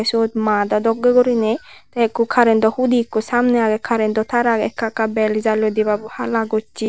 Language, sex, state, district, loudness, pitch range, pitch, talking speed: Chakma, male, Tripura, Unakoti, -18 LUFS, 220-240 Hz, 225 Hz, 200 wpm